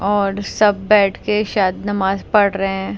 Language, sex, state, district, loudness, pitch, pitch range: Hindi, female, Maharashtra, Mumbai Suburban, -17 LUFS, 200 Hz, 195-205 Hz